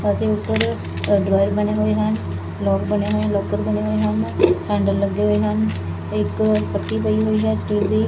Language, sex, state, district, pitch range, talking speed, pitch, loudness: Punjabi, female, Punjab, Fazilka, 100-105 Hz, 180 wpm, 105 Hz, -20 LUFS